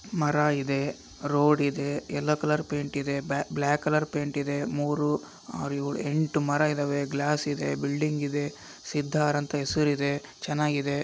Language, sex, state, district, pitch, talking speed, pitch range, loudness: Kannada, male, Karnataka, Raichur, 145 Hz, 150 wpm, 140-150 Hz, -28 LUFS